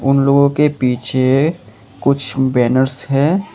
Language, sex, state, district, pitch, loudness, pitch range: Hindi, male, Assam, Kamrup Metropolitan, 135 Hz, -15 LUFS, 130-140 Hz